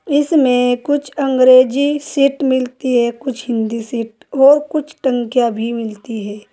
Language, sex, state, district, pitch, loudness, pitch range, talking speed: Hindi, female, Uttar Pradesh, Saharanpur, 255 Hz, -15 LUFS, 235-280 Hz, 140 wpm